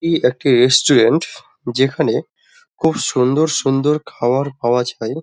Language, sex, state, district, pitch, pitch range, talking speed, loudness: Bengali, male, West Bengal, Dakshin Dinajpur, 135 Hz, 125-160 Hz, 115 wpm, -16 LUFS